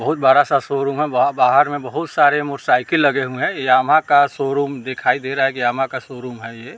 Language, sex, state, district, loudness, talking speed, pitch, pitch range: Hindi, male, Bihar, Vaishali, -17 LUFS, 240 wpm, 135 Hz, 130-145 Hz